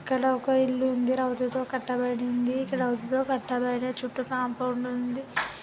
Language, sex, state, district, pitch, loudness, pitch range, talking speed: Telugu, male, Andhra Pradesh, Guntur, 255 Hz, -28 LUFS, 250-260 Hz, 95 wpm